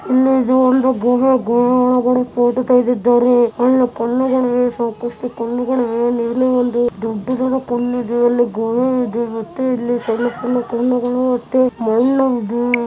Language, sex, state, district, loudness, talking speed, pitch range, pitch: Kannada, male, Karnataka, Bellary, -16 LUFS, 125 wpm, 240-255 Hz, 245 Hz